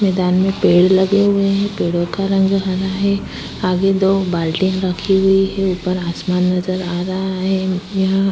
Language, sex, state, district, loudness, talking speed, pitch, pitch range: Hindi, female, Uttar Pradesh, Budaun, -16 LUFS, 180 wpm, 190 Hz, 185-195 Hz